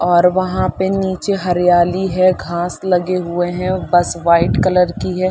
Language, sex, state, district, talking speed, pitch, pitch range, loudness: Hindi, female, Chhattisgarh, Balrampur, 180 wpm, 180 Hz, 175-185 Hz, -16 LUFS